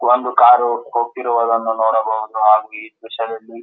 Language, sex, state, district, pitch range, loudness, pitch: Kannada, male, Karnataka, Dharwad, 110-120 Hz, -16 LUFS, 115 Hz